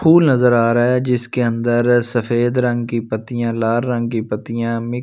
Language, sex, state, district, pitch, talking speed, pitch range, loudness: Hindi, male, Delhi, New Delhi, 120 Hz, 180 wpm, 115-125 Hz, -17 LUFS